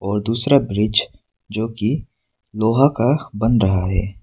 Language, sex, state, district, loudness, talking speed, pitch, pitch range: Hindi, male, Arunachal Pradesh, Papum Pare, -18 LUFS, 125 wpm, 110 Hz, 100-120 Hz